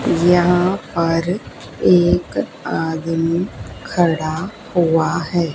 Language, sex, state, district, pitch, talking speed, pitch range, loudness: Hindi, female, Haryana, Charkhi Dadri, 170 Hz, 75 wpm, 165-180 Hz, -18 LUFS